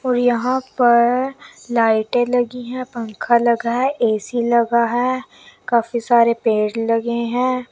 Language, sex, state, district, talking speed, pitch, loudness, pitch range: Hindi, female, Chandigarh, Chandigarh, 130 wpm, 240 Hz, -18 LUFS, 235-250 Hz